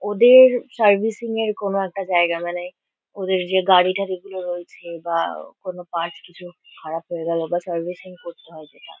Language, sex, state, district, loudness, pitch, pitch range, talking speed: Bengali, female, West Bengal, Kolkata, -20 LUFS, 180 Hz, 170-195 Hz, 160 wpm